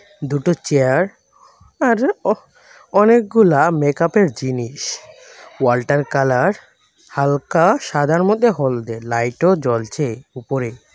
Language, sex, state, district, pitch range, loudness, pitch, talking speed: Bengali, male, Tripura, West Tripura, 125-175 Hz, -17 LUFS, 145 Hz, 80 wpm